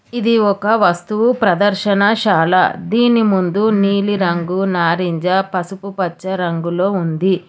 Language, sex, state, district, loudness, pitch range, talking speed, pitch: Telugu, female, Telangana, Hyderabad, -15 LUFS, 180-205 Hz, 90 wpm, 195 Hz